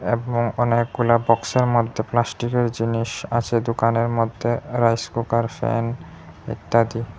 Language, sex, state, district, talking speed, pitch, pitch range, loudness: Bengali, male, Assam, Hailakandi, 110 wpm, 115 Hz, 115-120 Hz, -21 LUFS